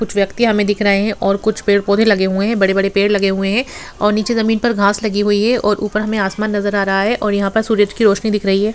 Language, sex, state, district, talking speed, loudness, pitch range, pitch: Hindi, female, Bihar, Sitamarhi, 300 wpm, -15 LUFS, 200-215 Hz, 205 Hz